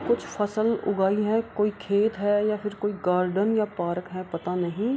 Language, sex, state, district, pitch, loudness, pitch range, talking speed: Hindi, female, Bihar, Kishanganj, 205 Hz, -26 LUFS, 185-215 Hz, 195 wpm